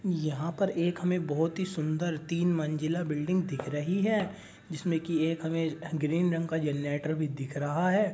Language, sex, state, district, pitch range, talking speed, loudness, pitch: Hindi, male, Uttar Pradesh, Muzaffarnagar, 155-175 Hz, 185 wpm, -30 LUFS, 165 Hz